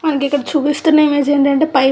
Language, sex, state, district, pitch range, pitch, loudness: Telugu, female, Andhra Pradesh, Visakhapatnam, 280-305 Hz, 290 Hz, -14 LUFS